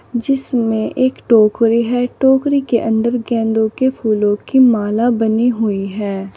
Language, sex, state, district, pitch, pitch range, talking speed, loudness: Hindi, female, Uttar Pradesh, Saharanpur, 230 Hz, 220-250 Hz, 140 wpm, -15 LUFS